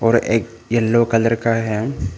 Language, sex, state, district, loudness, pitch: Hindi, male, Arunachal Pradesh, Papum Pare, -18 LUFS, 115 Hz